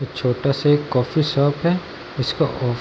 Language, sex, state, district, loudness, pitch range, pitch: Hindi, male, Bihar, Darbhanga, -20 LUFS, 125-150 Hz, 140 Hz